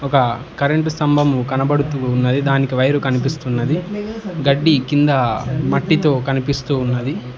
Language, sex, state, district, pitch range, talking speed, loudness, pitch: Telugu, male, Telangana, Hyderabad, 130-145 Hz, 105 wpm, -17 LUFS, 140 Hz